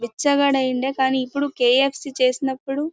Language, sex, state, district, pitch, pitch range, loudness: Telugu, female, Karnataka, Bellary, 270 Hz, 255-280 Hz, -20 LUFS